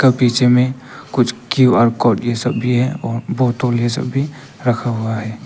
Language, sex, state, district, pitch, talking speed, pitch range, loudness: Hindi, male, Arunachal Pradesh, Papum Pare, 125 Hz, 185 wpm, 120-130 Hz, -17 LUFS